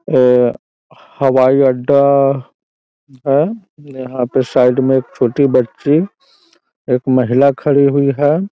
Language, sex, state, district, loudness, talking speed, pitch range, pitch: Hindi, male, Bihar, Muzaffarpur, -13 LUFS, 105 wpm, 130-140 Hz, 135 Hz